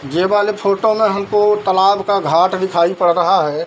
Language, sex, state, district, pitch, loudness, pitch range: Hindi, male, Bihar, Darbhanga, 195 Hz, -15 LUFS, 185-210 Hz